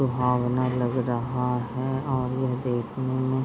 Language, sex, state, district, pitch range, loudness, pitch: Hindi, male, Bihar, Gopalganj, 125-130 Hz, -26 LUFS, 125 Hz